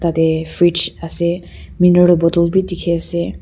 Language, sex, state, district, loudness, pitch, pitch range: Nagamese, female, Nagaland, Kohima, -15 LUFS, 170 Hz, 170-175 Hz